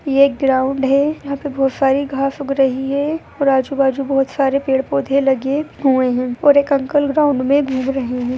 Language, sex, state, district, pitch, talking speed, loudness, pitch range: Hindi, female, Bihar, Begusarai, 275 Hz, 210 wpm, -17 LUFS, 265-280 Hz